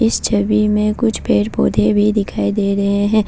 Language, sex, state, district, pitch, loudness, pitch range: Hindi, female, Assam, Kamrup Metropolitan, 205 Hz, -16 LUFS, 195-210 Hz